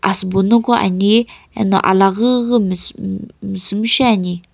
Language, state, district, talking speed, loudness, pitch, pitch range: Sumi, Nagaland, Kohima, 120 wpm, -15 LUFS, 200 Hz, 195-235 Hz